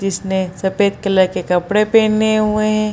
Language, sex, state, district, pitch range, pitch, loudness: Hindi, female, Bihar, Purnia, 190-215 Hz, 200 Hz, -16 LUFS